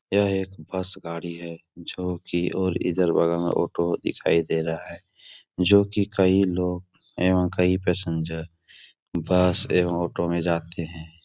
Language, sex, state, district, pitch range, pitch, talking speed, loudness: Hindi, male, Uttar Pradesh, Etah, 85-90 Hz, 85 Hz, 155 wpm, -24 LUFS